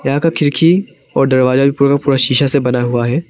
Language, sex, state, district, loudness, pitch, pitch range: Hindi, male, Arunachal Pradesh, Papum Pare, -13 LUFS, 140 Hz, 130-145 Hz